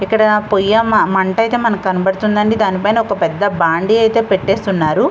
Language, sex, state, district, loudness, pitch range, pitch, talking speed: Telugu, female, Andhra Pradesh, Visakhapatnam, -14 LUFS, 190-220 Hz, 205 Hz, 155 wpm